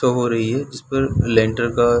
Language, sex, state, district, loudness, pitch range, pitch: Hindi, male, Chhattisgarh, Bilaspur, -19 LUFS, 115-130 Hz, 120 Hz